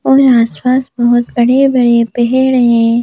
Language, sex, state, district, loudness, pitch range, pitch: Hindi, female, Madhya Pradesh, Bhopal, -11 LUFS, 235-260 Hz, 240 Hz